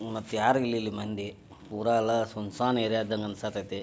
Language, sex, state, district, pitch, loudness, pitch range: Kannada, male, Karnataka, Belgaum, 110 Hz, -29 LUFS, 105-115 Hz